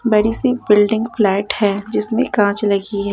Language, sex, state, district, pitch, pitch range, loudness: Hindi, female, Haryana, Jhajjar, 210 Hz, 200-230 Hz, -16 LUFS